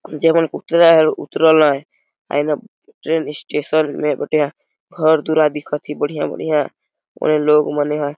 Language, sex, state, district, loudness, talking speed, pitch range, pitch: Awadhi, male, Chhattisgarh, Balrampur, -17 LUFS, 155 wpm, 150-160 Hz, 150 Hz